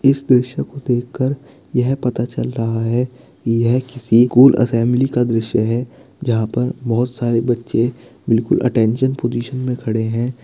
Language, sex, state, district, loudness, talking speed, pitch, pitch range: Hindi, male, Bihar, Kishanganj, -17 LUFS, 160 wpm, 120 Hz, 115-130 Hz